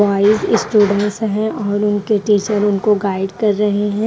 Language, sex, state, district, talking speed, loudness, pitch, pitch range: Hindi, female, Haryana, Rohtak, 175 wpm, -16 LUFS, 205 Hz, 205-210 Hz